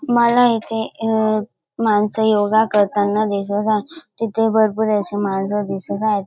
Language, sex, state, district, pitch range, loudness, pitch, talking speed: Marathi, female, Maharashtra, Dhule, 205-225 Hz, -18 LUFS, 215 Hz, 135 wpm